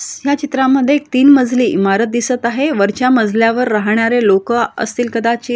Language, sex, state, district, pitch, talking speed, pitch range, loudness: Marathi, female, Maharashtra, Solapur, 240 Hz, 150 wpm, 225-265 Hz, -13 LUFS